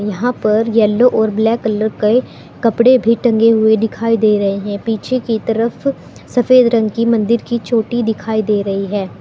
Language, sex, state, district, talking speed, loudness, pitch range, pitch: Hindi, female, Uttar Pradesh, Saharanpur, 180 wpm, -14 LUFS, 215-235 Hz, 225 Hz